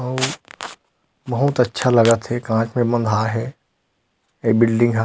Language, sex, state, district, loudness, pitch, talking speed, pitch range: Chhattisgarhi, male, Chhattisgarh, Rajnandgaon, -19 LUFS, 120 Hz, 165 wpm, 115-125 Hz